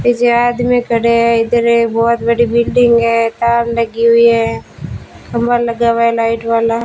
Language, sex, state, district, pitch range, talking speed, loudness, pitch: Hindi, female, Rajasthan, Bikaner, 230-235 Hz, 160 wpm, -12 LUFS, 235 Hz